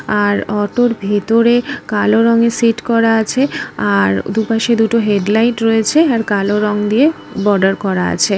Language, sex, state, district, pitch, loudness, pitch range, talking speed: Bengali, female, West Bengal, Kolkata, 220 Hz, -14 LUFS, 205-230 Hz, 145 wpm